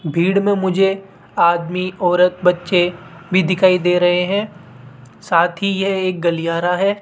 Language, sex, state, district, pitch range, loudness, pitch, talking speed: Hindi, female, Rajasthan, Jaipur, 170-190 Hz, -17 LUFS, 180 Hz, 145 wpm